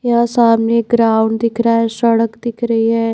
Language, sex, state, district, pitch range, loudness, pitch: Hindi, female, Haryana, Charkhi Dadri, 225-235 Hz, -14 LUFS, 230 Hz